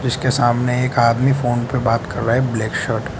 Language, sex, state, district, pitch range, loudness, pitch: Hindi, male, Mizoram, Aizawl, 115-130 Hz, -18 LUFS, 120 Hz